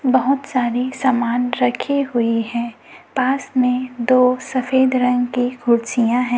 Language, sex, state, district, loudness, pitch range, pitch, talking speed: Hindi, female, Chhattisgarh, Raipur, -18 LUFS, 245-260 Hz, 250 Hz, 130 wpm